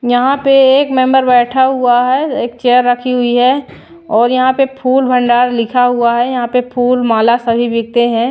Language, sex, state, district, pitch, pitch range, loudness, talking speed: Hindi, female, Bihar, Patna, 250 Hz, 240-260 Hz, -12 LUFS, 195 wpm